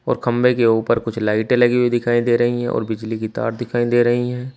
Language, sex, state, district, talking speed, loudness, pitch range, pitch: Hindi, male, Uttar Pradesh, Saharanpur, 265 wpm, -18 LUFS, 115-120 Hz, 120 Hz